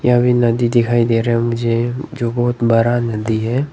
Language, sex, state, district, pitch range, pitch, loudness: Hindi, male, Nagaland, Dimapur, 115-120 Hz, 120 Hz, -16 LUFS